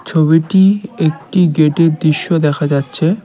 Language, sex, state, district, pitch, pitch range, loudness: Bengali, male, West Bengal, Cooch Behar, 160 Hz, 155-185 Hz, -13 LUFS